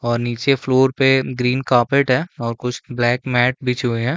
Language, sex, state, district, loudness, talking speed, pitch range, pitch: Hindi, male, Chhattisgarh, Rajnandgaon, -18 LUFS, 200 wpm, 120-135 Hz, 125 Hz